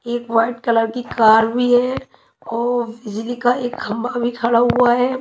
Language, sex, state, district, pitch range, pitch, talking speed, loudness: Hindi, female, Himachal Pradesh, Shimla, 230-245 Hz, 240 Hz, 185 wpm, -18 LUFS